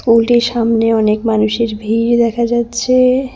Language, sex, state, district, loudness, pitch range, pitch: Bengali, female, West Bengal, Cooch Behar, -13 LUFS, 225-240 Hz, 230 Hz